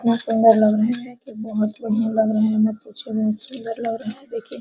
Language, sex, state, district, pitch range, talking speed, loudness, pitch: Hindi, female, Bihar, Araria, 215-235 Hz, 245 wpm, -20 LUFS, 225 Hz